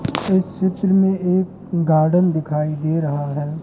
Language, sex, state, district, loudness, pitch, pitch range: Hindi, male, Madhya Pradesh, Katni, -19 LUFS, 175 Hz, 155-190 Hz